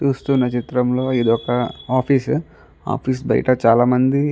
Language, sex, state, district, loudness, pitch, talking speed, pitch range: Telugu, male, Andhra Pradesh, Guntur, -18 LUFS, 130 Hz, 150 wpm, 125-135 Hz